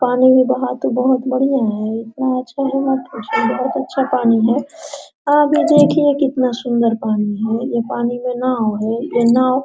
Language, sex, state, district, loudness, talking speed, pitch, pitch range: Hindi, female, Bihar, Araria, -16 LUFS, 185 wpm, 255 Hz, 230-270 Hz